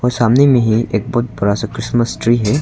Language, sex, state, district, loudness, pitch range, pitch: Hindi, male, Arunachal Pradesh, Longding, -15 LUFS, 110-125 Hz, 120 Hz